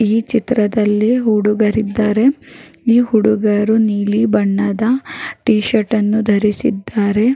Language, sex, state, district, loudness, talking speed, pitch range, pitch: Kannada, female, Karnataka, Raichur, -15 LUFS, 100 wpm, 210-225 Hz, 215 Hz